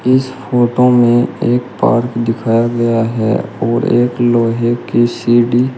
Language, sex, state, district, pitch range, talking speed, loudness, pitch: Hindi, male, Uttar Pradesh, Shamli, 115-120 Hz, 145 wpm, -13 LUFS, 120 Hz